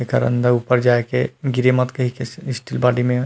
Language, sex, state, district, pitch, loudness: Chhattisgarhi, male, Chhattisgarh, Rajnandgaon, 125 Hz, -19 LUFS